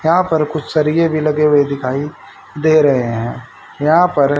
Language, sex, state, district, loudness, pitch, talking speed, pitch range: Hindi, male, Haryana, Charkhi Dadri, -15 LUFS, 150 Hz, 190 wpm, 140-155 Hz